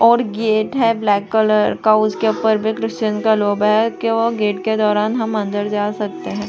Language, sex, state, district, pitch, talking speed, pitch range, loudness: Hindi, female, Chhattisgarh, Raigarh, 215 Hz, 205 wpm, 210-225 Hz, -17 LUFS